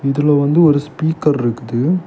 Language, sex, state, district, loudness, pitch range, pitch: Tamil, male, Tamil Nadu, Kanyakumari, -15 LUFS, 140-160 Hz, 145 Hz